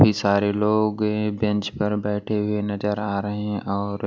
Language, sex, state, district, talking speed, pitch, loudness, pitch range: Hindi, male, Maharashtra, Washim, 175 wpm, 105 Hz, -23 LUFS, 100-105 Hz